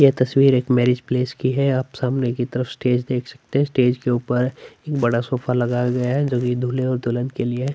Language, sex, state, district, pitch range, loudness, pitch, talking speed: Hindi, male, Chhattisgarh, Sukma, 125-130 Hz, -21 LUFS, 125 Hz, 245 wpm